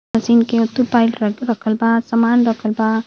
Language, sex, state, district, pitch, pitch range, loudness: Hindi, female, Uttar Pradesh, Varanasi, 230 Hz, 225-235 Hz, -16 LUFS